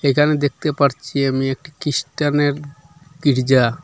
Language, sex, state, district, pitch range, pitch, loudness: Bengali, male, Assam, Hailakandi, 135-150 Hz, 145 Hz, -19 LUFS